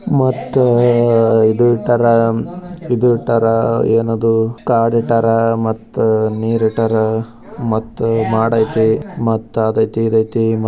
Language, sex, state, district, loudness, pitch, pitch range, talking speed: Kannada, male, Karnataka, Bijapur, -15 LUFS, 115 Hz, 110-120 Hz, 100 wpm